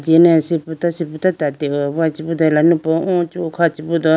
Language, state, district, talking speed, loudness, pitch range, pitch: Idu Mishmi, Arunachal Pradesh, Lower Dibang Valley, 160 wpm, -17 LUFS, 155-170 Hz, 165 Hz